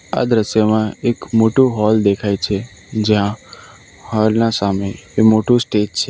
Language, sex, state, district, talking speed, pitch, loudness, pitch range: Gujarati, male, Gujarat, Valsad, 150 wpm, 110 Hz, -16 LUFS, 100-115 Hz